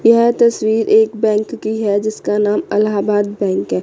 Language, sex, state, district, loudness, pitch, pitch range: Hindi, female, Chandigarh, Chandigarh, -15 LUFS, 215 Hz, 205-220 Hz